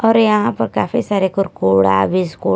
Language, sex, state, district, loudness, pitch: Hindi, female, Punjab, Kapurthala, -16 LUFS, 185 Hz